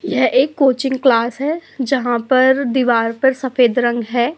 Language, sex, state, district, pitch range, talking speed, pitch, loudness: Hindi, female, Uttar Pradesh, Budaun, 240-270 Hz, 165 wpm, 260 Hz, -16 LUFS